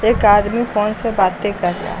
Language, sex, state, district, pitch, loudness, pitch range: Hindi, female, Uttar Pradesh, Lucknow, 210 Hz, -16 LUFS, 205-225 Hz